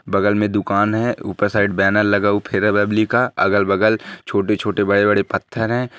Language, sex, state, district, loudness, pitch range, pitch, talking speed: Hindi, male, Rajasthan, Nagaur, -18 LUFS, 100-110 Hz, 105 Hz, 180 wpm